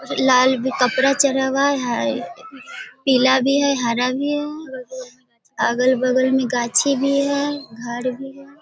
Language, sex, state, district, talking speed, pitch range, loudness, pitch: Hindi, female, Bihar, Sitamarhi, 145 wpm, 255-280 Hz, -19 LUFS, 260 Hz